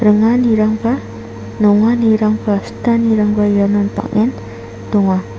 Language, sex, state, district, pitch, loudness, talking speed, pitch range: Garo, female, Meghalaya, South Garo Hills, 215 Hz, -14 LUFS, 65 wpm, 205-225 Hz